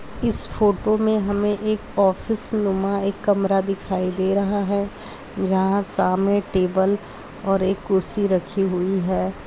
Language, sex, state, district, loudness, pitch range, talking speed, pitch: Hindi, female, Uttar Pradesh, Jalaun, -22 LUFS, 190-205 Hz, 140 wpm, 195 Hz